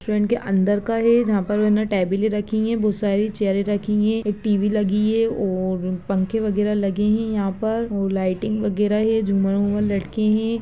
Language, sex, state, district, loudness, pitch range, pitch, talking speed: Hindi, male, Bihar, Gaya, -21 LUFS, 200-215 Hz, 210 Hz, 200 wpm